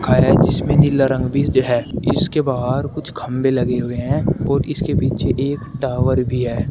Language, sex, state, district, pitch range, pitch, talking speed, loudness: Hindi, male, Uttar Pradesh, Shamli, 125-145 Hz, 135 Hz, 180 wpm, -18 LUFS